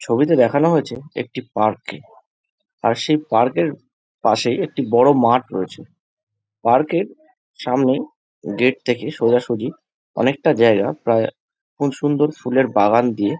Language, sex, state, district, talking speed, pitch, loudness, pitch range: Bengali, male, West Bengal, Jhargram, 135 wpm, 125 Hz, -18 LUFS, 115-150 Hz